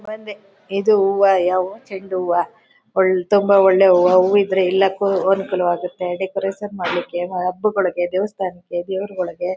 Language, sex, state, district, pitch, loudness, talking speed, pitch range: Kannada, female, Karnataka, Chamarajanagar, 190 Hz, -18 LUFS, 115 wpm, 180-200 Hz